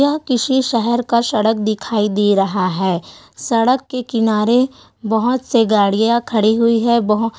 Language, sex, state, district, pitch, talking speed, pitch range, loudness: Hindi, female, Chhattisgarh, Korba, 230 Hz, 160 wpm, 215-245 Hz, -16 LUFS